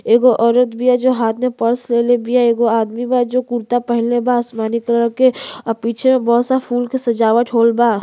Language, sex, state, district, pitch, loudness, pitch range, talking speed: Bhojpuri, female, Uttar Pradesh, Gorakhpur, 240 Hz, -15 LUFS, 230-250 Hz, 225 wpm